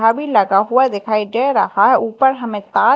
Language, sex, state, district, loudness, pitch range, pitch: Hindi, female, Madhya Pradesh, Dhar, -15 LUFS, 210-265 Hz, 225 Hz